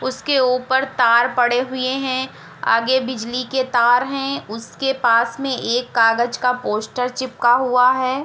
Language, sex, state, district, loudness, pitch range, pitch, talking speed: Hindi, female, Uttar Pradesh, Etah, -18 LUFS, 240-260 Hz, 250 Hz, 155 wpm